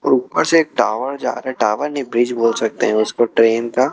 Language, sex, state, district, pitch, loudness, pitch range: Hindi, male, Chhattisgarh, Raipur, 120 Hz, -17 LUFS, 115-135 Hz